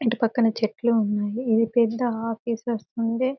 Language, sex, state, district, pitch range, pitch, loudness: Telugu, female, Telangana, Karimnagar, 225-235 Hz, 230 Hz, -24 LUFS